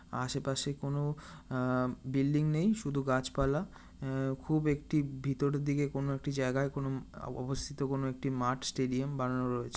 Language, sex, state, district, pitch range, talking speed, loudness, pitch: Bengali, male, West Bengal, North 24 Parganas, 130-145 Hz, 155 wpm, -34 LUFS, 135 Hz